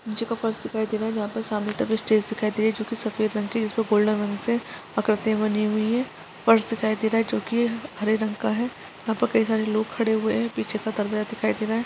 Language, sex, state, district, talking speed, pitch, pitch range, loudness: Hindi, female, Chhattisgarh, Kabirdham, 275 wpm, 220 Hz, 215-225 Hz, -25 LUFS